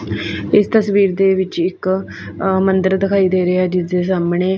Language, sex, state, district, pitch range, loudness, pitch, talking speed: Punjabi, female, Punjab, Fazilka, 180-195 Hz, -16 LUFS, 190 Hz, 185 wpm